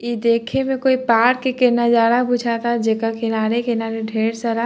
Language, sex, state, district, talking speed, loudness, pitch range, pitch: Bhojpuri, female, Bihar, Saran, 165 wpm, -18 LUFS, 225-245 Hz, 235 Hz